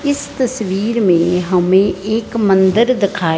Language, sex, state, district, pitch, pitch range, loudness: Hindi, female, Punjab, Fazilka, 200 Hz, 185-230 Hz, -14 LUFS